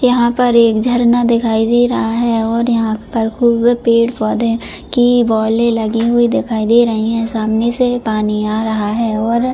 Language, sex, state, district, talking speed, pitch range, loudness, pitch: Hindi, female, Jharkhand, Jamtara, 180 wpm, 220-240 Hz, -14 LUFS, 230 Hz